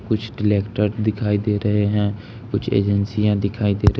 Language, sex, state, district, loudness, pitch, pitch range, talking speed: Hindi, male, Bihar, Samastipur, -20 LUFS, 105 Hz, 100-110 Hz, 165 wpm